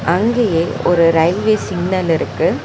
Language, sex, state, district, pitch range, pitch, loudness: Tamil, female, Tamil Nadu, Chennai, 165-210 Hz, 175 Hz, -15 LUFS